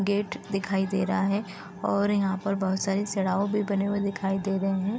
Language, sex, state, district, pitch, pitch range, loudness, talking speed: Hindi, female, Uttar Pradesh, Deoria, 195 Hz, 195-200 Hz, -27 LUFS, 215 wpm